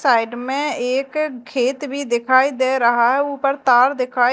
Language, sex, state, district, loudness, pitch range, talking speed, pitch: Hindi, female, Madhya Pradesh, Dhar, -18 LUFS, 245-280 Hz, 165 wpm, 260 Hz